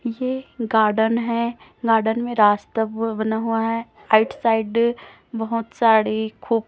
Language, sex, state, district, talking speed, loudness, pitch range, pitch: Hindi, female, Chhattisgarh, Raipur, 145 wpm, -21 LUFS, 220-235 Hz, 225 Hz